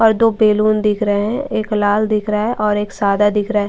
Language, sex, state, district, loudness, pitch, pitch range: Hindi, female, Bihar, Katihar, -16 LUFS, 210 Hz, 205-215 Hz